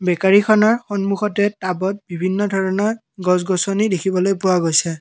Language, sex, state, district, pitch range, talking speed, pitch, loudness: Assamese, male, Assam, Kamrup Metropolitan, 185-205 Hz, 120 wpm, 195 Hz, -18 LUFS